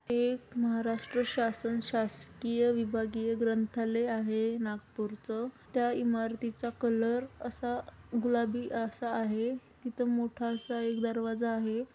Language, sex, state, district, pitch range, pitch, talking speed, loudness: Marathi, female, Maharashtra, Nagpur, 225-240 Hz, 230 Hz, 110 wpm, -33 LUFS